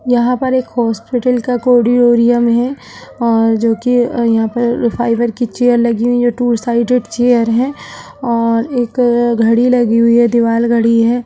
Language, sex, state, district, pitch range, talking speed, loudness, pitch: Hindi, female, Uttar Pradesh, Budaun, 230-245 Hz, 165 wpm, -13 LUFS, 240 Hz